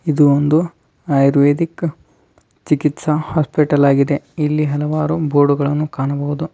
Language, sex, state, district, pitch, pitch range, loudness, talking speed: Kannada, male, Karnataka, Dharwad, 150 Hz, 145-155 Hz, -16 LUFS, 100 wpm